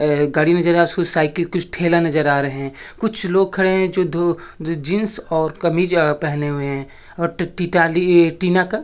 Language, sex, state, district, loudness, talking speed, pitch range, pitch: Hindi, male, Jharkhand, Sahebganj, -17 LUFS, 185 wpm, 155-180 Hz, 170 Hz